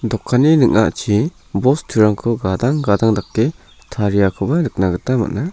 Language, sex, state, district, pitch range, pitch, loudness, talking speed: Garo, male, Meghalaya, South Garo Hills, 100-135 Hz, 115 Hz, -16 LUFS, 110 wpm